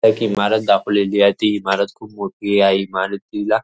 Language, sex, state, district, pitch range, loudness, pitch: Marathi, male, Maharashtra, Nagpur, 100-105 Hz, -17 LUFS, 100 Hz